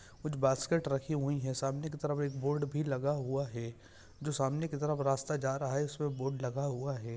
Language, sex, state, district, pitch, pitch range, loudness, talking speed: Hindi, male, Chhattisgarh, Bastar, 140 Hz, 135-150 Hz, -35 LUFS, 225 wpm